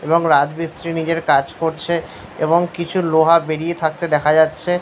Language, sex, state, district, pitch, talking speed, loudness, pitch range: Bengali, male, West Bengal, Paschim Medinipur, 165 Hz, 150 wpm, -17 LUFS, 155-170 Hz